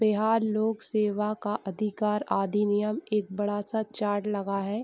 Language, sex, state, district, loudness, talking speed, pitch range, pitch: Hindi, female, Bihar, Gopalganj, -28 LUFS, 135 wpm, 205-215 Hz, 210 Hz